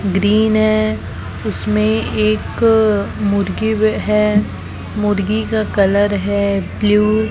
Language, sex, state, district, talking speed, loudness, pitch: Hindi, male, Chhattisgarh, Raipur, 100 wpm, -16 LUFS, 205 Hz